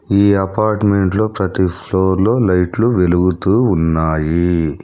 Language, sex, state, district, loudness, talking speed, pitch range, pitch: Telugu, male, Telangana, Hyderabad, -15 LUFS, 85 wpm, 85-100 Hz, 95 Hz